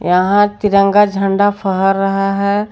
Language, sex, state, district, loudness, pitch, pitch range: Hindi, female, Jharkhand, Garhwa, -13 LUFS, 195 Hz, 195-205 Hz